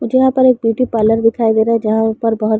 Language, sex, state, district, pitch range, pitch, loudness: Hindi, female, Uttar Pradesh, Varanasi, 220-240 Hz, 225 Hz, -14 LUFS